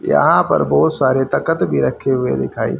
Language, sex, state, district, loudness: Hindi, male, Haryana, Rohtak, -16 LUFS